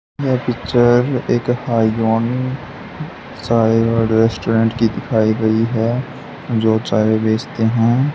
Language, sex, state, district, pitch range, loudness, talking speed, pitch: Hindi, male, Haryana, Charkhi Dadri, 110-125 Hz, -16 LUFS, 110 wpm, 115 Hz